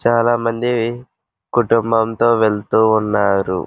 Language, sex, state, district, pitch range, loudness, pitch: Telugu, male, Andhra Pradesh, Krishna, 105-120 Hz, -16 LUFS, 115 Hz